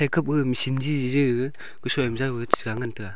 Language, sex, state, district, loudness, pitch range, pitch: Wancho, male, Arunachal Pradesh, Longding, -25 LUFS, 120-140 Hz, 130 Hz